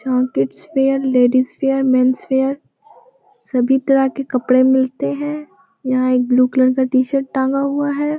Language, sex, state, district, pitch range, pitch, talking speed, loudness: Hindi, female, Bihar, Jamui, 255-280 Hz, 265 Hz, 160 wpm, -16 LUFS